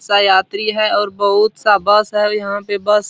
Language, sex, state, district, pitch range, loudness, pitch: Hindi, male, Bihar, Supaul, 200-210 Hz, -15 LUFS, 205 Hz